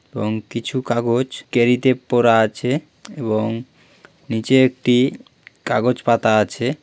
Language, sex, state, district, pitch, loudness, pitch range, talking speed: Bengali, male, West Bengal, Jhargram, 120 Hz, -19 LUFS, 115-130 Hz, 115 wpm